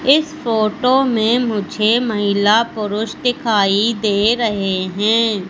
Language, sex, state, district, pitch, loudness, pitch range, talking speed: Hindi, female, Madhya Pradesh, Katni, 220 Hz, -16 LUFS, 205-240 Hz, 110 wpm